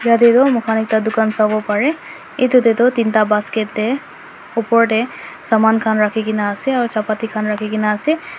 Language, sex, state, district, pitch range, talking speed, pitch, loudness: Nagamese, female, Nagaland, Dimapur, 215-245 Hz, 210 wpm, 225 Hz, -16 LUFS